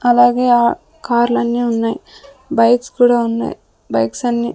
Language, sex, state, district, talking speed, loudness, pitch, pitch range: Telugu, female, Andhra Pradesh, Sri Satya Sai, 130 wpm, -15 LUFS, 240 Hz, 235-245 Hz